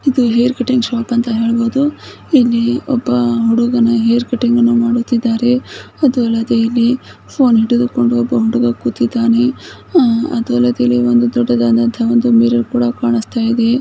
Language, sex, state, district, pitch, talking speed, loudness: Kannada, female, Karnataka, Bijapur, 235 Hz, 125 wpm, -14 LUFS